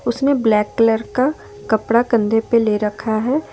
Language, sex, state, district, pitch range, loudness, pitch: Hindi, female, Jharkhand, Ranchi, 220-250 Hz, -17 LUFS, 225 Hz